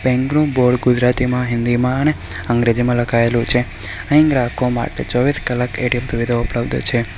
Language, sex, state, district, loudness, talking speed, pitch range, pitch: Gujarati, male, Gujarat, Valsad, -17 LUFS, 140 wpm, 120-125 Hz, 125 Hz